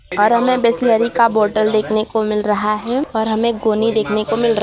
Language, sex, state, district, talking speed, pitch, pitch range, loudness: Hindi, female, Gujarat, Valsad, 220 wpm, 220 Hz, 215-235 Hz, -16 LUFS